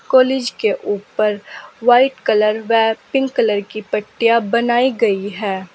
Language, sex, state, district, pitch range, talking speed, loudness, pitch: Hindi, female, Uttar Pradesh, Saharanpur, 210-245 Hz, 135 wpm, -17 LUFS, 225 Hz